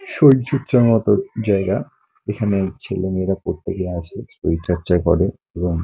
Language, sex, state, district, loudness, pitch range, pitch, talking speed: Bengali, male, West Bengal, Kolkata, -19 LUFS, 90-115 Hz, 95 Hz, 125 wpm